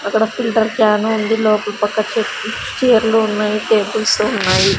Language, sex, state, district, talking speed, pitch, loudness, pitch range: Telugu, female, Andhra Pradesh, Sri Satya Sai, 140 wpm, 220 Hz, -16 LUFS, 210-225 Hz